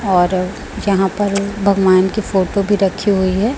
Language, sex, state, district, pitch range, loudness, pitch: Hindi, female, Chhattisgarh, Raipur, 185-205 Hz, -16 LUFS, 200 Hz